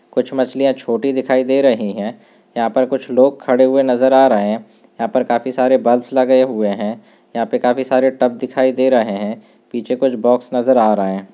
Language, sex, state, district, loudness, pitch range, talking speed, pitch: Hindi, male, Uttarakhand, Uttarkashi, -16 LUFS, 115-130 Hz, 215 wpm, 125 Hz